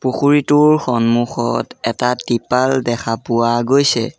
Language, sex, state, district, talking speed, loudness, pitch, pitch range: Assamese, male, Assam, Sonitpur, 100 wpm, -16 LUFS, 120 Hz, 115-135 Hz